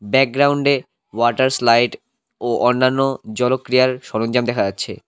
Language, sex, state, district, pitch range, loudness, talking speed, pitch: Bengali, male, West Bengal, Cooch Behar, 120-135 Hz, -18 LUFS, 105 wpm, 125 Hz